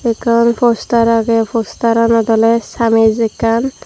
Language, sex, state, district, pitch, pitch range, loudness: Chakma, female, Tripura, Dhalai, 230 Hz, 225-235 Hz, -13 LUFS